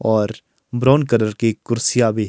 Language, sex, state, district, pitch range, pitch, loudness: Hindi, male, Himachal Pradesh, Shimla, 110-120 Hz, 115 Hz, -18 LUFS